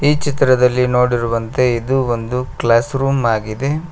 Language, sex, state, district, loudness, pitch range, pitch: Kannada, male, Karnataka, Koppal, -16 LUFS, 115-135 Hz, 125 Hz